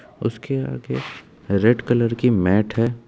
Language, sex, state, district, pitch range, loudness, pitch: Hindi, male, Uttar Pradesh, Etah, 85-115 Hz, -21 LUFS, 110 Hz